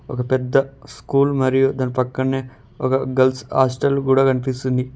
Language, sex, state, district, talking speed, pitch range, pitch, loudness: Telugu, male, Telangana, Mahabubabad, 135 wpm, 130-135 Hz, 130 Hz, -19 LUFS